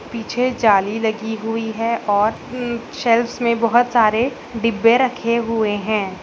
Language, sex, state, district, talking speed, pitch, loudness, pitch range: Hindi, female, Uttar Pradesh, Budaun, 145 wpm, 230 Hz, -18 LUFS, 220-240 Hz